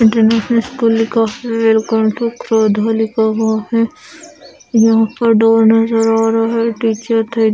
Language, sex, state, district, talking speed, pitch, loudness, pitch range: Hindi, female, Odisha, Khordha, 50 wpm, 225 Hz, -14 LUFS, 220-230 Hz